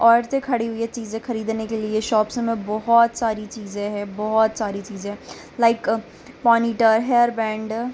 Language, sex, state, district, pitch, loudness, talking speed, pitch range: Hindi, female, Bihar, Bhagalpur, 225 Hz, -21 LUFS, 165 wpm, 215-235 Hz